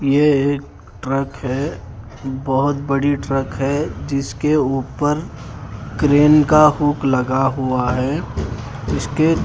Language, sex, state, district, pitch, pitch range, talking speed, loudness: Hindi, male, Haryana, Charkhi Dadri, 135 Hz, 130-145 Hz, 115 wpm, -18 LUFS